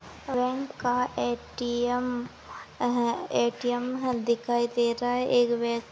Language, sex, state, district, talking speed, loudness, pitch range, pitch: Hindi, female, Maharashtra, Pune, 120 wpm, -28 LUFS, 235-250 Hz, 245 Hz